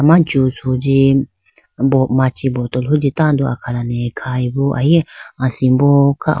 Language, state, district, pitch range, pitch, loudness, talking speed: Idu Mishmi, Arunachal Pradesh, Lower Dibang Valley, 130-140 Hz, 135 Hz, -15 LUFS, 85 wpm